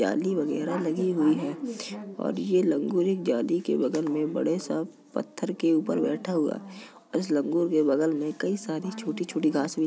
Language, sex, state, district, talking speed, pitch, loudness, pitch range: Hindi, female, Uttar Pradesh, Jalaun, 200 wpm, 170 Hz, -27 LUFS, 155-185 Hz